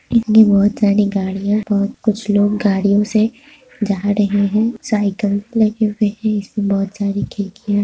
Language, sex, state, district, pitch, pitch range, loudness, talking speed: Hindi, female, Bihar, Madhepura, 205 Hz, 200-215 Hz, -17 LUFS, 145 wpm